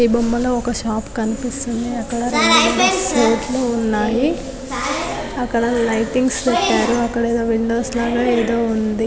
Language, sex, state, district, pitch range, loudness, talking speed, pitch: Telugu, female, Telangana, Nalgonda, 230-245 Hz, -18 LUFS, 120 wpm, 235 Hz